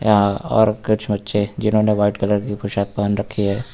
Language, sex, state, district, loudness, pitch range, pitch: Hindi, male, Uttar Pradesh, Lucknow, -19 LUFS, 100-105 Hz, 105 Hz